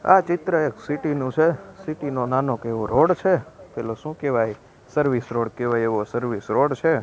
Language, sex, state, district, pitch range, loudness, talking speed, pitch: Gujarati, male, Gujarat, Gandhinagar, 120-160 Hz, -23 LUFS, 190 wpm, 135 Hz